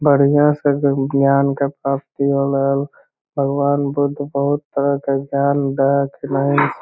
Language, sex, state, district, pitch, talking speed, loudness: Magahi, male, Bihar, Lakhisarai, 140 Hz, 150 wpm, -18 LUFS